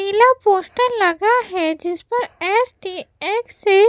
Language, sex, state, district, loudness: Hindi, female, Bihar, West Champaran, -18 LUFS